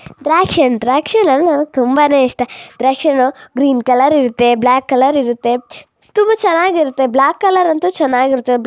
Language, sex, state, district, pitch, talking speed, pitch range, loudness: Kannada, female, Karnataka, Raichur, 270 Hz, 150 wpm, 255-315 Hz, -13 LUFS